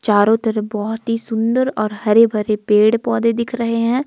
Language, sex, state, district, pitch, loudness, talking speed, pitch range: Hindi, female, Himachal Pradesh, Shimla, 225 Hz, -17 LUFS, 190 wpm, 215-230 Hz